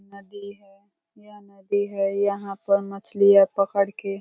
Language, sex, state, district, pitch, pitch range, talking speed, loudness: Hindi, female, Uttar Pradesh, Ghazipur, 200 Hz, 195-200 Hz, 155 wpm, -22 LUFS